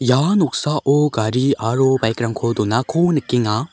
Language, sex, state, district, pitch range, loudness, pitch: Garo, male, Meghalaya, South Garo Hills, 115-150 Hz, -18 LUFS, 130 Hz